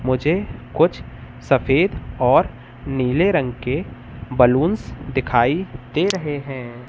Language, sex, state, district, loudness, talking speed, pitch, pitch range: Hindi, male, Madhya Pradesh, Katni, -20 LUFS, 105 wpm, 130 Hz, 125-150 Hz